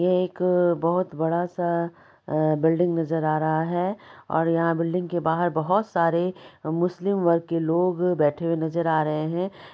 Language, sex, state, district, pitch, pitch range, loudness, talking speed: Maithili, male, Bihar, Supaul, 170 Hz, 160-180 Hz, -24 LUFS, 155 wpm